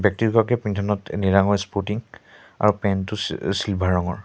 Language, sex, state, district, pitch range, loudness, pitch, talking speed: Assamese, male, Assam, Sonitpur, 95-105 Hz, -22 LUFS, 100 Hz, 125 wpm